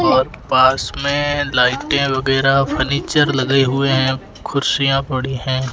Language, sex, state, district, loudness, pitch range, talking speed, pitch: Hindi, male, Rajasthan, Bikaner, -16 LUFS, 130-140 Hz, 125 wpm, 135 Hz